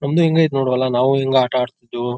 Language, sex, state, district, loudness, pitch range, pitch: Kannada, male, Karnataka, Bijapur, -17 LUFS, 125-140 Hz, 130 Hz